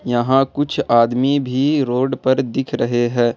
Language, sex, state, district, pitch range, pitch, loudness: Hindi, male, Jharkhand, Ranchi, 120-135 Hz, 130 Hz, -17 LUFS